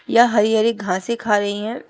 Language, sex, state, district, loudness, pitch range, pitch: Hindi, female, Uttar Pradesh, Shamli, -19 LUFS, 205-235 Hz, 220 Hz